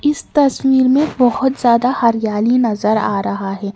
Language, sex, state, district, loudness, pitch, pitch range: Hindi, male, Karnataka, Bangalore, -15 LUFS, 245 Hz, 215-265 Hz